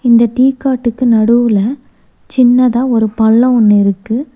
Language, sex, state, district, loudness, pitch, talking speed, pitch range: Tamil, female, Tamil Nadu, Nilgiris, -11 LUFS, 240 Hz, 125 wpm, 225-255 Hz